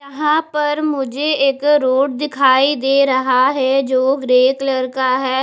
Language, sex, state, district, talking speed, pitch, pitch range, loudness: Hindi, female, Odisha, Nuapada, 155 wpm, 270 Hz, 260-290 Hz, -15 LUFS